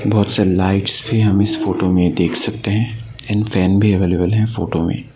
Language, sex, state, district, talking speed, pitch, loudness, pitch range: Hindi, male, Assam, Sonitpur, 210 wpm, 105 Hz, -16 LUFS, 95-110 Hz